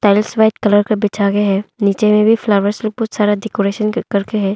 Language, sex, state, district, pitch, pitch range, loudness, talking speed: Hindi, female, Arunachal Pradesh, Longding, 210 Hz, 200-215 Hz, -15 LUFS, 195 wpm